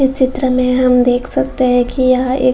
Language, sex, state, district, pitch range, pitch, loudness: Hindi, female, Bihar, Saran, 250-260 Hz, 255 Hz, -13 LUFS